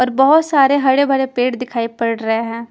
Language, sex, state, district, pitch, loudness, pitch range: Hindi, female, Punjab, Kapurthala, 255 Hz, -15 LUFS, 230-275 Hz